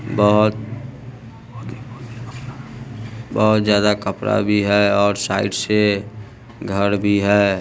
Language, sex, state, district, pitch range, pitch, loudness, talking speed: Hindi, male, Bihar, West Champaran, 100-120 Hz, 110 Hz, -17 LUFS, 95 wpm